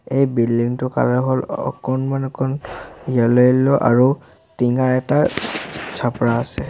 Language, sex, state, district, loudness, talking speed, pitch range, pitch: Assamese, male, Assam, Sonitpur, -18 LUFS, 115 wpm, 125-135 Hz, 130 Hz